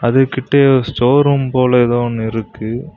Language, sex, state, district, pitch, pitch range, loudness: Tamil, male, Tamil Nadu, Kanyakumari, 125 Hz, 120-135 Hz, -14 LUFS